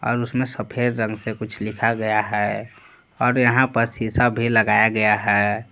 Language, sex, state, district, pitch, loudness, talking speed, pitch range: Hindi, male, Jharkhand, Palamu, 110 Hz, -20 LUFS, 180 wpm, 105-120 Hz